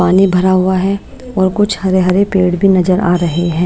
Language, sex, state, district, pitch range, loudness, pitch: Hindi, female, Maharashtra, Washim, 180-195 Hz, -13 LUFS, 185 Hz